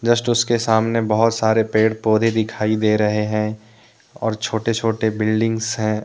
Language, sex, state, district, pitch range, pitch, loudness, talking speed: Hindi, male, Jharkhand, Deoghar, 110-115 Hz, 110 Hz, -19 LUFS, 150 wpm